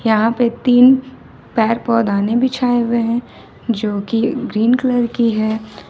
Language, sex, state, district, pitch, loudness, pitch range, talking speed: Hindi, female, Jharkhand, Ranchi, 235 Hz, -16 LUFS, 220-245 Hz, 150 wpm